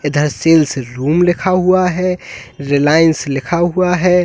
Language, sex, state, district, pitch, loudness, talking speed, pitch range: Hindi, male, Uttar Pradesh, Lalitpur, 165 Hz, -14 LUFS, 140 wpm, 145-180 Hz